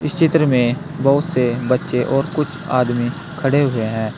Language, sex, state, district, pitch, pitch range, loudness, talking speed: Hindi, male, Uttar Pradesh, Saharanpur, 135 Hz, 125-150 Hz, -18 LUFS, 170 wpm